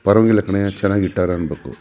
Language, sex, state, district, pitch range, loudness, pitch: Kannada, male, Karnataka, Mysore, 90-100 Hz, -18 LUFS, 100 Hz